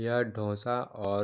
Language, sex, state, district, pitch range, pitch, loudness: Hindi, male, Jharkhand, Jamtara, 105-120 Hz, 110 Hz, -32 LUFS